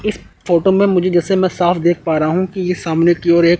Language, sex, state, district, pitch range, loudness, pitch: Hindi, male, Chandigarh, Chandigarh, 170-185 Hz, -15 LUFS, 175 Hz